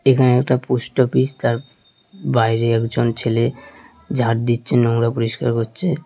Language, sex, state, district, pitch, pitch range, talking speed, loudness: Bengali, male, West Bengal, Dakshin Dinajpur, 120 Hz, 115-130 Hz, 130 wpm, -18 LUFS